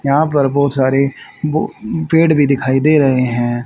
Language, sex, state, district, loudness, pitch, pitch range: Hindi, male, Haryana, Rohtak, -14 LUFS, 140 Hz, 130-150 Hz